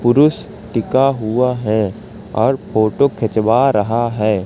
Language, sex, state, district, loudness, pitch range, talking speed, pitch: Hindi, male, Madhya Pradesh, Katni, -16 LUFS, 110-130 Hz, 120 wpm, 115 Hz